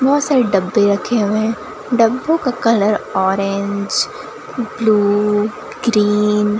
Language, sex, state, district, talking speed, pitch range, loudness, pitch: Hindi, female, Bihar, Katihar, 120 wpm, 205-235 Hz, -16 LUFS, 210 Hz